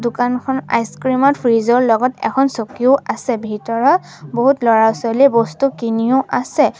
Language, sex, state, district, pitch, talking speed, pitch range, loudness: Assamese, female, Assam, Sonitpur, 245 Hz, 140 wpm, 230-270 Hz, -16 LUFS